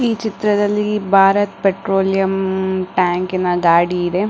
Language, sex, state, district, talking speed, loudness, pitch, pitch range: Kannada, female, Karnataka, Dakshina Kannada, 125 wpm, -16 LUFS, 195 Hz, 185-205 Hz